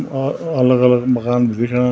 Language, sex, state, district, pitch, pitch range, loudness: Garhwali, male, Uttarakhand, Tehri Garhwal, 125 Hz, 120-130 Hz, -16 LUFS